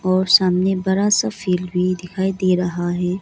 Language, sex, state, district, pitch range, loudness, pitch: Hindi, female, Arunachal Pradesh, Lower Dibang Valley, 180-190 Hz, -18 LUFS, 185 Hz